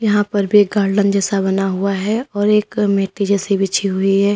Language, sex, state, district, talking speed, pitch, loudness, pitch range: Hindi, female, Uttar Pradesh, Lalitpur, 220 wpm, 200 Hz, -16 LUFS, 195-205 Hz